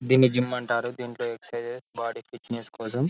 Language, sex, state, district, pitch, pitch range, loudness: Telugu, male, Telangana, Karimnagar, 120 Hz, 115-125 Hz, -28 LUFS